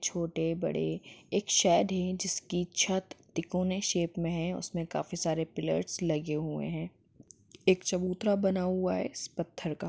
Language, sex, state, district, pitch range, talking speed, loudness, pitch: Hindi, female, Jharkhand, Jamtara, 165-185 Hz, 150 wpm, -31 LUFS, 175 Hz